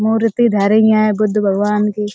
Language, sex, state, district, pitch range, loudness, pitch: Hindi, female, Uttar Pradesh, Budaun, 210-220 Hz, -14 LUFS, 210 Hz